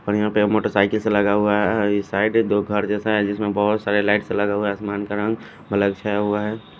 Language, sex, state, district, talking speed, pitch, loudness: Hindi, male, Odisha, Khordha, 230 wpm, 105 Hz, -20 LUFS